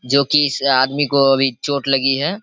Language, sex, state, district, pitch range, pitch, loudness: Hindi, male, Bihar, Saharsa, 135-145 Hz, 140 Hz, -16 LUFS